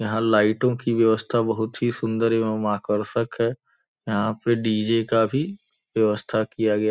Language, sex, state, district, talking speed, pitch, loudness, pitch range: Hindi, male, Uttar Pradesh, Gorakhpur, 165 wpm, 110 Hz, -23 LUFS, 110-115 Hz